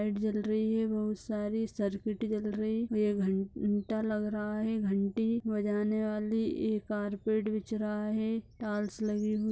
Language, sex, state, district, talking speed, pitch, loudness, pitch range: Hindi, female, Uttar Pradesh, Etah, 165 wpm, 215 Hz, -33 LUFS, 210-220 Hz